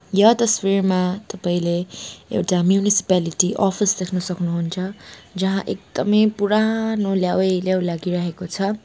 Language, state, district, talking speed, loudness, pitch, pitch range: Nepali, West Bengal, Darjeeling, 100 wpm, -20 LUFS, 190 Hz, 180-205 Hz